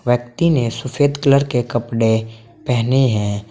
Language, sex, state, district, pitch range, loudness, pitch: Hindi, male, Uttar Pradesh, Saharanpur, 115-140 Hz, -17 LUFS, 120 Hz